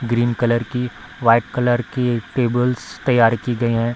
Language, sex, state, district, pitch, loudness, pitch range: Hindi, female, Bihar, Samastipur, 120 Hz, -19 LUFS, 120-125 Hz